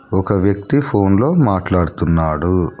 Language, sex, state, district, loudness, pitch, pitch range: Telugu, male, Telangana, Hyderabad, -16 LUFS, 95 Hz, 90-105 Hz